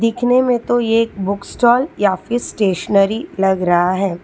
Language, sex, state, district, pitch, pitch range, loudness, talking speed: Hindi, female, Telangana, Hyderabad, 205 Hz, 190-240 Hz, -16 LUFS, 185 wpm